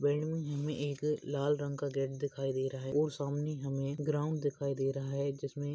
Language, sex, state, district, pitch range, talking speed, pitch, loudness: Hindi, male, Maharashtra, Nagpur, 140-145 Hz, 220 wpm, 145 Hz, -35 LUFS